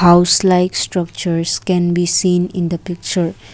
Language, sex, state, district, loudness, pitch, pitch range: English, female, Assam, Kamrup Metropolitan, -16 LUFS, 175 Hz, 170-180 Hz